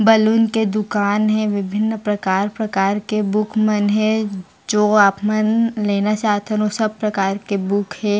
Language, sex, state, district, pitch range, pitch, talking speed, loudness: Chhattisgarhi, female, Chhattisgarh, Raigarh, 205-215 Hz, 210 Hz, 160 wpm, -18 LUFS